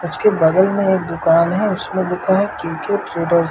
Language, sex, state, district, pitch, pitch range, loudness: Hindi, male, Madhya Pradesh, Umaria, 180 Hz, 170-195 Hz, -17 LUFS